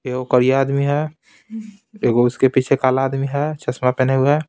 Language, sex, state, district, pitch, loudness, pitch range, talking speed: Hindi, male, Bihar, Patna, 135 Hz, -18 LUFS, 130-150 Hz, 175 wpm